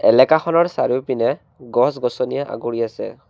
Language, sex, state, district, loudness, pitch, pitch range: Assamese, male, Assam, Kamrup Metropolitan, -19 LUFS, 130 Hz, 125-160 Hz